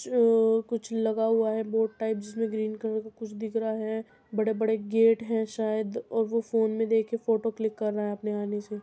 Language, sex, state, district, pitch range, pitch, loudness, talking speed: Hindi, female, Uttar Pradesh, Muzaffarnagar, 220-225 Hz, 220 Hz, -28 LUFS, 225 wpm